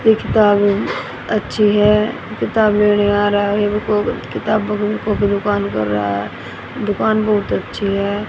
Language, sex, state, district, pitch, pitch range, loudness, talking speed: Hindi, female, Haryana, Rohtak, 205 Hz, 200-210 Hz, -17 LUFS, 145 wpm